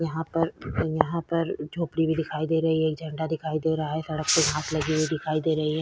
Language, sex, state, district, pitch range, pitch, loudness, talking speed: Hindi, female, Bihar, Vaishali, 155-160 Hz, 160 Hz, -26 LUFS, 260 wpm